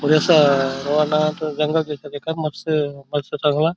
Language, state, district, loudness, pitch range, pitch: Bhili, Maharashtra, Dhule, -20 LUFS, 145-155 Hz, 150 Hz